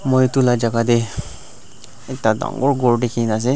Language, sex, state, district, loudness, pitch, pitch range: Nagamese, male, Nagaland, Dimapur, -18 LUFS, 120 Hz, 115-130 Hz